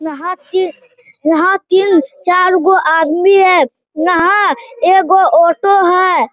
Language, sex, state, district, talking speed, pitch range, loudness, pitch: Hindi, male, Bihar, Bhagalpur, 125 wpm, 330-380 Hz, -11 LUFS, 365 Hz